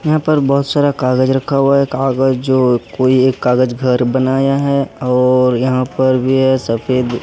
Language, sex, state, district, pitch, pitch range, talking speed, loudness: Hindi, male, Bihar, Katihar, 130 Hz, 125-135 Hz, 185 wpm, -14 LUFS